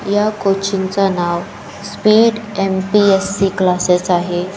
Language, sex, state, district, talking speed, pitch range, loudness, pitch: Marathi, female, Maharashtra, Chandrapur, 90 wpm, 180-205 Hz, -15 LUFS, 195 Hz